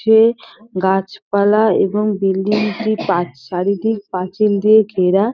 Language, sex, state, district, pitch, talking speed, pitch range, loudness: Bengali, female, West Bengal, North 24 Parganas, 205 Hz, 110 wpm, 190-220 Hz, -16 LUFS